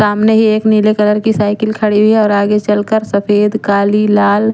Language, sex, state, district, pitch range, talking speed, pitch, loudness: Hindi, female, Chandigarh, Chandigarh, 205-215 Hz, 210 wpm, 210 Hz, -12 LUFS